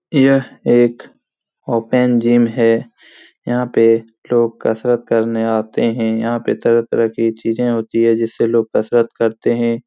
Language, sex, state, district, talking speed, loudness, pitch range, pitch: Hindi, male, Bihar, Supaul, 145 wpm, -16 LUFS, 115-120 Hz, 115 Hz